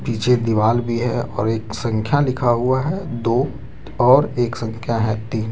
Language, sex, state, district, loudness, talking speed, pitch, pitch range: Hindi, male, Jharkhand, Deoghar, -19 LUFS, 175 wpm, 120 Hz, 110-130 Hz